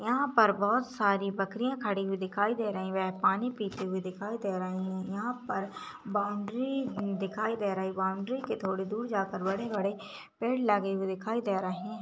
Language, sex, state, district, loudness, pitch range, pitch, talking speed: Hindi, female, Chhattisgarh, Balrampur, -32 LUFS, 190-230 Hz, 205 Hz, 190 wpm